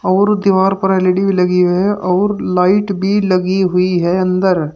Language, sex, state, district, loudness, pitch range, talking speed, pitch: Hindi, male, Uttar Pradesh, Shamli, -14 LUFS, 180-195 Hz, 190 wpm, 185 Hz